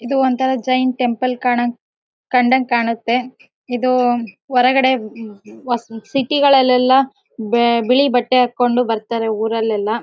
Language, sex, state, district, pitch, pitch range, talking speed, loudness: Kannada, female, Karnataka, Bellary, 245 Hz, 230-255 Hz, 100 wpm, -16 LUFS